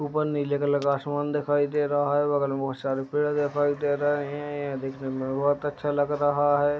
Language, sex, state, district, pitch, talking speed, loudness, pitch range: Hindi, male, Uttar Pradesh, Deoria, 145 Hz, 230 wpm, -26 LUFS, 140-145 Hz